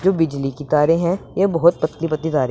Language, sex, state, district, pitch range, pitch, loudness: Hindi, female, Punjab, Pathankot, 150-175 Hz, 165 Hz, -19 LUFS